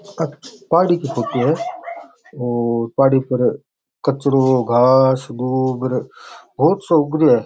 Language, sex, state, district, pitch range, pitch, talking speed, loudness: Rajasthani, male, Rajasthan, Churu, 125-155 Hz, 130 Hz, 135 wpm, -17 LUFS